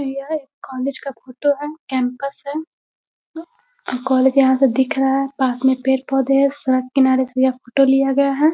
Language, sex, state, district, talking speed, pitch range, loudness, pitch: Hindi, female, Bihar, Muzaffarpur, 190 wpm, 260-280 Hz, -18 LUFS, 270 Hz